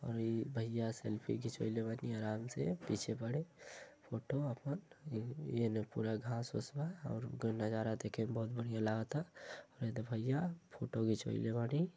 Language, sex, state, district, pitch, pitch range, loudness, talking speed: Bhojpuri, male, Uttar Pradesh, Gorakhpur, 115 Hz, 110-140 Hz, -41 LUFS, 145 wpm